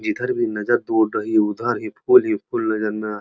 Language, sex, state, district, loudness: Hindi, male, Uttar Pradesh, Muzaffarnagar, -20 LUFS